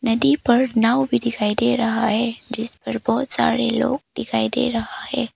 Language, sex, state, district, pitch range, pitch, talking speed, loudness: Hindi, female, Arunachal Pradesh, Papum Pare, 225-255 Hz, 235 Hz, 190 wpm, -20 LUFS